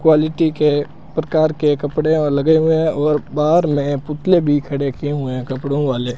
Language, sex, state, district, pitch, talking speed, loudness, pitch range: Hindi, male, Rajasthan, Bikaner, 150 Hz, 185 wpm, -17 LUFS, 140-155 Hz